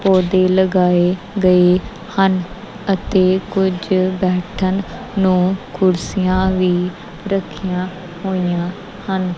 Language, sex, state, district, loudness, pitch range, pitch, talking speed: Punjabi, female, Punjab, Kapurthala, -17 LUFS, 180-195 Hz, 185 Hz, 85 wpm